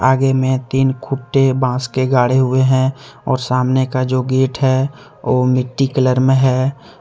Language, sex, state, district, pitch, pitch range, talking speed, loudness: Hindi, male, Jharkhand, Deoghar, 130 Hz, 130-135 Hz, 170 wpm, -16 LUFS